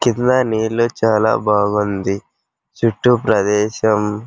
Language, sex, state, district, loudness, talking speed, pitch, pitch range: Telugu, male, Andhra Pradesh, Krishna, -16 LUFS, 100 wpm, 110 Hz, 105-115 Hz